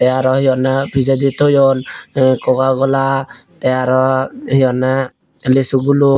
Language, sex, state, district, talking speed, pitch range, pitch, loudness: Chakma, male, Tripura, Unakoti, 135 wpm, 130-135 Hz, 130 Hz, -14 LUFS